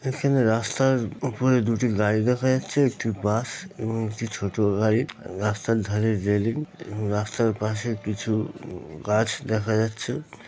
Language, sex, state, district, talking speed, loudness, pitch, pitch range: Bengali, male, West Bengal, North 24 Parganas, 135 wpm, -25 LUFS, 110 Hz, 105-125 Hz